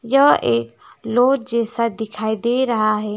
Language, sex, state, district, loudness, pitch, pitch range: Hindi, female, West Bengal, Alipurduar, -18 LUFS, 230 Hz, 215-240 Hz